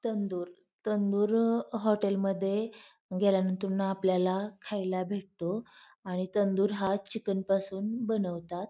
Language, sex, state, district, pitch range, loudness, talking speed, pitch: Marathi, female, Maharashtra, Pune, 190-210 Hz, -31 LUFS, 95 wpm, 200 Hz